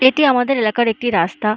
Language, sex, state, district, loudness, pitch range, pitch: Bengali, female, West Bengal, Malda, -16 LUFS, 215-260 Hz, 235 Hz